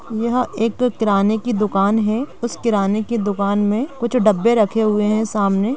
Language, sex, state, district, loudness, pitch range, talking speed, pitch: Hindi, female, Bihar, East Champaran, -18 LUFS, 205-235 Hz, 175 wpm, 220 Hz